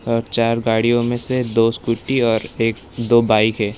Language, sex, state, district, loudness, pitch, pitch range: Hindi, male, Uttar Pradesh, Lalitpur, -18 LUFS, 115 Hz, 115-120 Hz